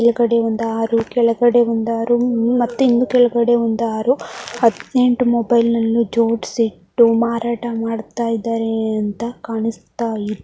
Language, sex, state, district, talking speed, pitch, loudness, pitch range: Kannada, female, Karnataka, Mysore, 125 wpm, 230 Hz, -17 LUFS, 225-240 Hz